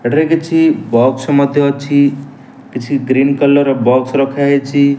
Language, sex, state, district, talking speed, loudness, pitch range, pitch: Odia, male, Odisha, Nuapada, 145 wpm, -12 LUFS, 130-145 Hz, 140 Hz